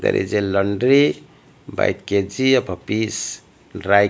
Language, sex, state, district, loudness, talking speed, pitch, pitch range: English, male, Odisha, Malkangiri, -19 LUFS, 145 wpm, 100 Hz, 100-125 Hz